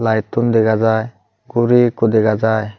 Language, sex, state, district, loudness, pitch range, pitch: Chakma, male, Tripura, Unakoti, -15 LUFS, 110-120 Hz, 110 Hz